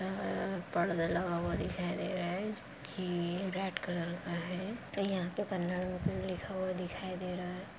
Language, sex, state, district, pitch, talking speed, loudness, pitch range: Hindi, female, Bihar, Saharsa, 180 Hz, 30 wpm, -37 LUFS, 175-190 Hz